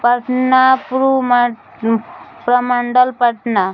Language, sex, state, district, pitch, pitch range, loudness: Hindi, female, Bihar, Jahanabad, 245 Hz, 235-255 Hz, -15 LUFS